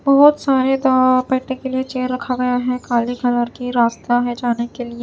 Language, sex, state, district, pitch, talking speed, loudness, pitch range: Hindi, female, Chhattisgarh, Raipur, 250 Hz, 215 wpm, -18 LUFS, 240-260 Hz